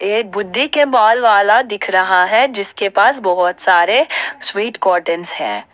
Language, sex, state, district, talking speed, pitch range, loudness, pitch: Hindi, female, Jharkhand, Ranchi, 155 wpm, 180-220 Hz, -14 LUFS, 200 Hz